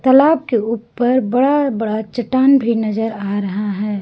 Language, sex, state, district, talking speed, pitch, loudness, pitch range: Hindi, female, Jharkhand, Garhwa, 165 wpm, 230 Hz, -16 LUFS, 215-260 Hz